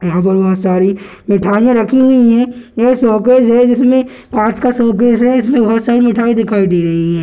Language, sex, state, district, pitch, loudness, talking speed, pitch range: Hindi, male, Bihar, Gaya, 230 Hz, -11 LUFS, 200 wpm, 200-245 Hz